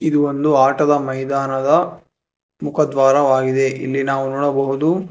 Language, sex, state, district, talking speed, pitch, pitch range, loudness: Kannada, male, Karnataka, Bangalore, 95 wpm, 135 Hz, 135-145 Hz, -17 LUFS